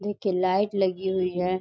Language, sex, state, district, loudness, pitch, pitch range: Hindi, female, Bihar, East Champaran, -25 LUFS, 190 Hz, 185-195 Hz